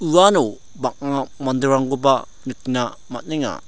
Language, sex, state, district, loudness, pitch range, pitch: Garo, male, Meghalaya, South Garo Hills, -20 LUFS, 130-140 Hz, 135 Hz